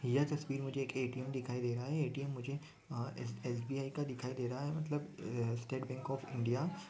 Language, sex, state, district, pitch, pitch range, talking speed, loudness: Hindi, male, Rajasthan, Churu, 135 Hz, 125-140 Hz, 155 wpm, -40 LUFS